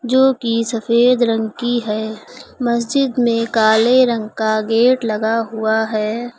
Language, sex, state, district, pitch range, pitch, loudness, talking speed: Hindi, female, Uttar Pradesh, Lucknow, 220-240 Hz, 230 Hz, -16 LUFS, 140 wpm